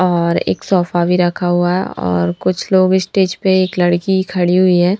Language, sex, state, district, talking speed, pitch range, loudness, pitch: Hindi, female, Punjab, Fazilka, 190 wpm, 175-185 Hz, -15 LUFS, 180 Hz